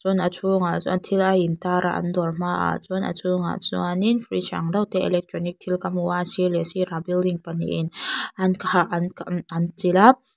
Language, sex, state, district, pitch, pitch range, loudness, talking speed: Mizo, female, Mizoram, Aizawl, 180 Hz, 175-185 Hz, -23 LUFS, 205 wpm